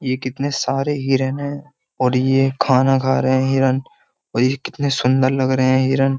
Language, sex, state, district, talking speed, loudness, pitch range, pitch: Hindi, male, Uttar Pradesh, Jyotiba Phule Nagar, 205 wpm, -18 LUFS, 130-135 Hz, 135 Hz